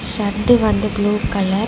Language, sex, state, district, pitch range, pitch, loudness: Tamil, female, Tamil Nadu, Chennai, 205-215 Hz, 210 Hz, -17 LUFS